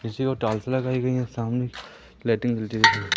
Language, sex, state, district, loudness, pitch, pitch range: Hindi, male, Madhya Pradesh, Umaria, -24 LUFS, 125 Hz, 115-130 Hz